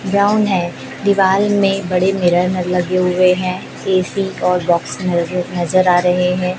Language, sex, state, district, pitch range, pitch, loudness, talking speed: Hindi, female, Chhattisgarh, Raipur, 180-190 Hz, 185 Hz, -16 LUFS, 155 wpm